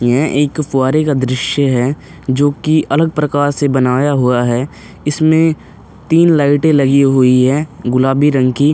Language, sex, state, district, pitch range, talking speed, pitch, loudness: Hindi, male, Uttar Pradesh, Hamirpur, 130-150 Hz, 160 wpm, 140 Hz, -13 LUFS